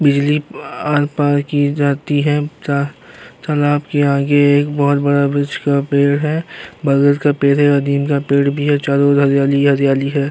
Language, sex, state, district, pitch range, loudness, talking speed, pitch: Hindi, male, Uttar Pradesh, Jyotiba Phule Nagar, 140-145 Hz, -15 LUFS, 185 wpm, 145 Hz